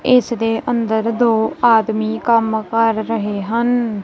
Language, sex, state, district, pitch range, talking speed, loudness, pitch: Punjabi, female, Punjab, Kapurthala, 220-235 Hz, 135 wpm, -17 LUFS, 225 Hz